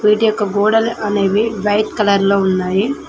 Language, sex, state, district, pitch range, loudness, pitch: Telugu, female, Telangana, Mahabubabad, 200-215 Hz, -15 LUFS, 210 Hz